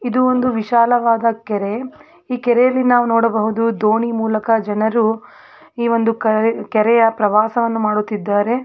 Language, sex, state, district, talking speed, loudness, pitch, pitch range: Kannada, female, Karnataka, Belgaum, 110 wpm, -16 LUFS, 230 Hz, 215-240 Hz